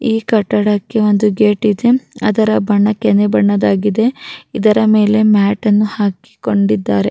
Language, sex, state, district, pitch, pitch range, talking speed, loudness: Kannada, female, Karnataka, Raichur, 210 Hz, 200-220 Hz, 65 wpm, -13 LUFS